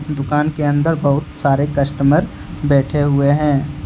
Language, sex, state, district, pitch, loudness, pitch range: Hindi, male, Jharkhand, Deoghar, 145 Hz, -16 LUFS, 140-150 Hz